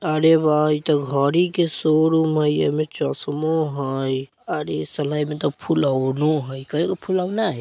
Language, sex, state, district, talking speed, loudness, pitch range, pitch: Bajjika, male, Bihar, Vaishali, 175 wpm, -21 LUFS, 140-160 Hz, 150 Hz